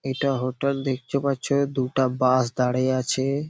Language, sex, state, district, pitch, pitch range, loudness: Bengali, male, West Bengal, Malda, 130 Hz, 130-140 Hz, -24 LUFS